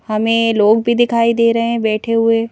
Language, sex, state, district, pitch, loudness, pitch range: Hindi, female, Madhya Pradesh, Bhopal, 230 Hz, -14 LUFS, 220-230 Hz